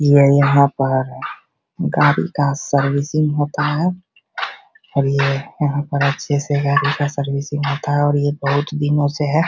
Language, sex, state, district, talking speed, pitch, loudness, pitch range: Hindi, male, Bihar, Begusarai, 165 wpm, 145 Hz, -18 LUFS, 140-145 Hz